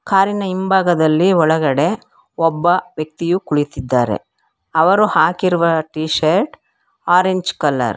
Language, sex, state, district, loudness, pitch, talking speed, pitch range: Kannada, female, Karnataka, Bangalore, -16 LUFS, 165 Hz, 100 wpm, 155-185 Hz